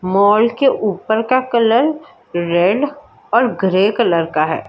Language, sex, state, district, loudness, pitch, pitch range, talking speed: Hindi, female, Maharashtra, Mumbai Suburban, -15 LUFS, 220 Hz, 185-255 Hz, 140 wpm